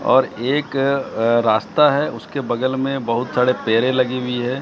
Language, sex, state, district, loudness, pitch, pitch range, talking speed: Hindi, male, Bihar, Katihar, -19 LUFS, 130 Hz, 120-135 Hz, 170 wpm